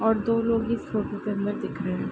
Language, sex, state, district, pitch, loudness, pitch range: Hindi, female, Bihar, Araria, 225 Hz, -27 LUFS, 210-230 Hz